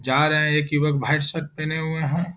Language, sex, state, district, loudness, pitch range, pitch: Hindi, male, Bihar, Jahanabad, -22 LUFS, 150-160 Hz, 150 Hz